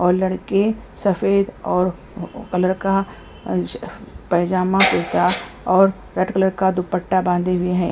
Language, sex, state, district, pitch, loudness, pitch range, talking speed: Hindi, female, Uttar Pradesh, Hamirpur, 185 Hz, -19 LUFS, 180-195 Hz, 120 wpm